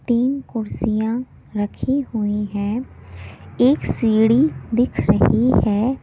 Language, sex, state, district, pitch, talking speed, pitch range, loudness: Hindi, female, Delhi, New Delhi, 225 Hz, 100 wpm, 205-250 Hz, -19 LUFS